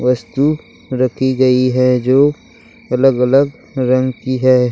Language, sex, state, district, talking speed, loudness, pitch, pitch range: Hindi, female, Uttarakhand, Tehri Garhwal, 115 wpm, -14 LUFS, 130 Hz, 125-135 Hz